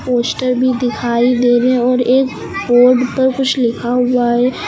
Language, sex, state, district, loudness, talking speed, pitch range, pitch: Hindi, female, Uttar Pradesh, Lucknow, -14 LUFS, 180 wpm, 245-255 Hz, 250 Hz